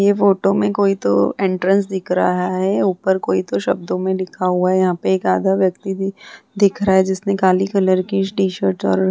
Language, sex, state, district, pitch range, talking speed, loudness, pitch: Hindi, female, Bihar, Vaishali, 180-195 Hz, 215 wpm, -17 LUFS, 190 Hz